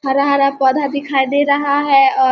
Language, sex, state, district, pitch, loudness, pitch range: Hindi, female, Bihar, Vaishali, 280 Hz, -14 LUFS, 275-290 Hz